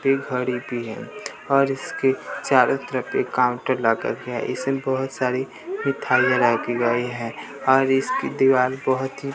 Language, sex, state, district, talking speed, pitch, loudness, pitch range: Hindi, male, Bihar, West Champaran, 165 wpm, 130 Hz, -22 LUFS, 125-135 Hz